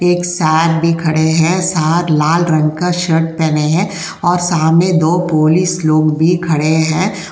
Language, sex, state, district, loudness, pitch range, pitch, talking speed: Hindi, female, Uttar Pradesh, Jyotiba Phule Nagar, -13 LUFS, 155-175 Hz, 165 Hz, 165 wpm